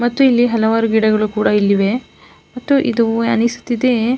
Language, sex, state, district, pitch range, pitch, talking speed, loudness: Kannada, female, Karnataka, Mysore, 220-245 Hz, 230 Hz, 130 wpm, -15 LUFS